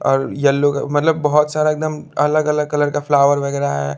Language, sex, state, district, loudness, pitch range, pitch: Hindi, male, Chandigarh, Chandigarh, -17 LUFS, 140-150 Hz, 145 Hz